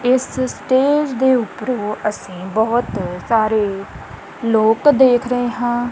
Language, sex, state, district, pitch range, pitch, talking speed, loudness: Punjabi, female, Punjab, Kapurthala, 215-255 Hz, 240 Hz, 110 wpm, -17 LUFS